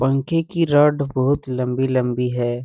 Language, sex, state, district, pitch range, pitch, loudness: Hindi, male, Bihar, Saran, 125-145 Hz, 130 Hz, -19 LUFS